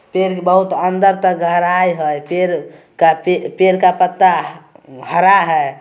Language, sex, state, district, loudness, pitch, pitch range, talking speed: Hindi, male, Bihar, Samastipur, -14 LUFS, 180 Hz, 175-185 Hz, 165 wpm